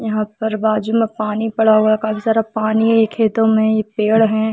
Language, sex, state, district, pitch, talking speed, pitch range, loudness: Hindi, female, Jharkhand, Sahebganj, 220 Hz, 225 wpm, 215-225 Hz, -16 LUFS